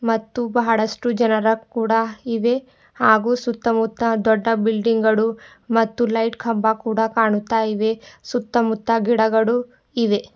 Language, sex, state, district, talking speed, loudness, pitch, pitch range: Kannada, female, Karnataka, Bidar, 115 wpm, -20 LUFS, 225 Hz, 220-235 Hz